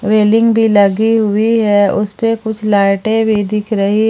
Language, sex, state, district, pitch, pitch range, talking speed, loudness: Hindi, female, Jharkhand, Palamu, 215 Hz, 205-225 Hz, 175 wpm, -12 LUFS